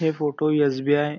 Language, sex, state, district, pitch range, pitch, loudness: Marathi, male, Maharashtra, Aurangabad, 145-155 Hz, 150 Hz, -22 LUFS